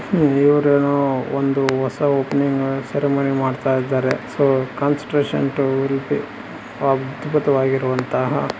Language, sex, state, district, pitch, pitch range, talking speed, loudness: Kannada, male, Karnataka, Bellary, 135 Hz, 135-140 Hz, 85 wpm, -19 LUFS